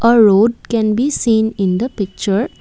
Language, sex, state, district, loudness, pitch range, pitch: English, female, Assam, Kamrup Metropolitan, -15 LUFS, 205-235 Hz, 220 Hz